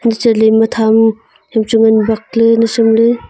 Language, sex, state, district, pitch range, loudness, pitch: Wancho, female, Arunachal Pradesh, Longding, 220-230 Hz, -11 LUFS, 225 Hz